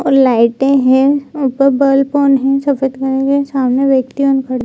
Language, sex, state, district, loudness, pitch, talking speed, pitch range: Hindi, female, Bihar, Jamui, -13 LUFS, 270 Hz, 195 wpm, 265-275 Hz